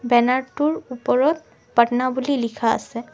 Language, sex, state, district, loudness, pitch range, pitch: Assamese, female, Assam, Sonitpur, -21 LUFS, 235-275 Hz, 255 Hz